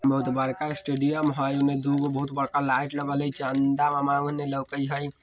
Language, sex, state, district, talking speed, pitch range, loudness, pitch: Maithili, male, Bihar, Muzaffarpur, 160 wpm, 135-145 Hz, -26 LUFS, 140 Hz